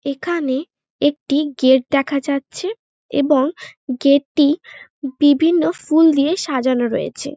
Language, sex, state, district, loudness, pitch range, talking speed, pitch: Bengali, female, West Bengal, North 24 Parganas, -17 LUFS, 275-320 Hz, 105 wpm, 285 Hz